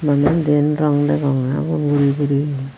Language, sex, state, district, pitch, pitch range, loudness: Chakma, female, Tripura, Unakoti, 145 Hz, 140-150 Hz, -17 LUFS